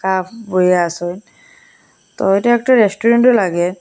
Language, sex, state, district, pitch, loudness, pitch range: Bengali, female, Assam, Hailakandi, 200 Hz, -14 LUFS, 180-240 Hz